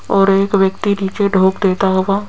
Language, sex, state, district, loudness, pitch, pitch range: Hindi, female, Rajasthan, Jaipur, -14 LUFS, 195 Hz, 190-200 Hz